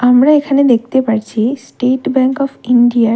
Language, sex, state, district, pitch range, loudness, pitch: Bengali, female, West Bengal, Darjeeling, 235-270 Hz, -13 LUFS, 250 Hz